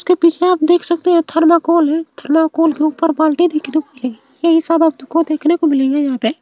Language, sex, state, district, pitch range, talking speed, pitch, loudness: Bhojpuri, female, Uttar Pradesh, Ghazipur, 300-335 Hz, 225 wpm, 320 Hz, -14 LUFS